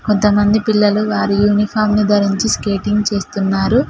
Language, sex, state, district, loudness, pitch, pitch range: Telugu, female, Telangana, Mahabubabad, -15 LUFS, 210 Hz, 200-210 Hz